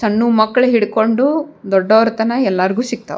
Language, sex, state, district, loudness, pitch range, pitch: Kannada, female, Karnataka, Bijapur, -14 LUFS, 215-245 Hz, 225 Hz